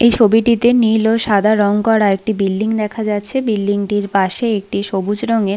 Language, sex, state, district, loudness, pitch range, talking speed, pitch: Bengali, female, West Bengal, Paschim Medinipur, -15 LUFS, 200-225 Hz, 185 wpm, 215 Hz